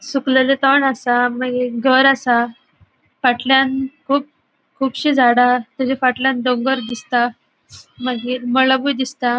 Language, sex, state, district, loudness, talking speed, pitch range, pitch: Konkani, female, Goa, North and South Goa, -17 LUFS, 110 wpm, 245-270 Hz, 260 Hz